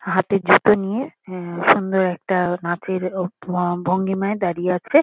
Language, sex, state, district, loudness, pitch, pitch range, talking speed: Bengali, female, West Bengal, Kolkata, -20 LUFS, 185 Hz, 180-195 Hz, 145 wpm